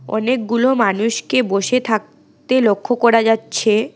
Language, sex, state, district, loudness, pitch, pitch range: Bengali, female, West Bengal, Alipurduar, -16 LUFS, 230 Hz, 215-250 Hz